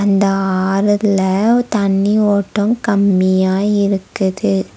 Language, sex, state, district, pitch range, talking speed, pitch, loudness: Tamil, female, Tamil Nadu, Nilgiris, 190-205 Hz, 75 wpm, 200 Hz, -15 LUFS